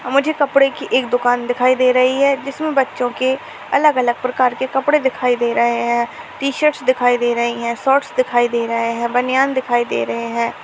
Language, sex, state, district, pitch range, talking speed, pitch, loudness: Hindi, female, Uttar Pradesh, Etah, 240-275 Hz, 195 wpm, 255 Hz, -17 LUFS